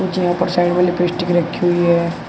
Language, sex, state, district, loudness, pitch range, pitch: Hindi, male, Uttar Pradesh, Shamli, -17 LUFS, 175-180 Hz, 175 Hz